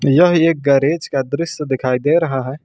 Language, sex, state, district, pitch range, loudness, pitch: Hindi, male, Jharkhand, Ranchi, 135-165 Hz, -16 LUFS, 145 Hz